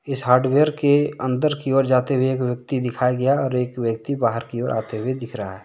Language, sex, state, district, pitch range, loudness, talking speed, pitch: Hindi, male, Jharkhand, Deoghar, 125-135 Hz, -21 LUFS, 255 wpm, 130 Hz